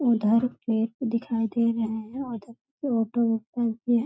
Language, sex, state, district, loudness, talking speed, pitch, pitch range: Hindi, female, Bihar, Bhagalpur, -26 LUFS, 120 wpm, 230 Hz, 225-240 Hz